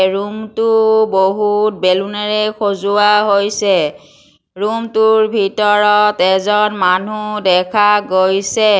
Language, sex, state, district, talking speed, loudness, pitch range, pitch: Assamese, female, Assam, Kamrup Metropolitan, 90 wpm, -14 LUFS, 190-215 Hz, 210 Hz